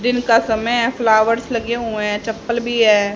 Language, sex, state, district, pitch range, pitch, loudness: Hindi, female, Haryana, Rohtak, 220-235 Hz, 230 Hz, -17 LUFS